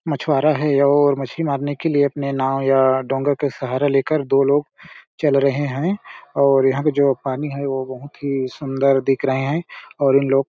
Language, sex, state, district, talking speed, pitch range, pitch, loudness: Hindi, male, Chhattisgarh, Balrampur, 200 wpm, 135-145 Hz, 140 Hz, -19 LUFS